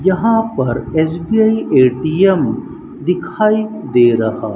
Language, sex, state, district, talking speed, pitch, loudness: Hindi, male, Rajasthan, Bikaner, 90 wpm, 180 Hz, -14 LUFS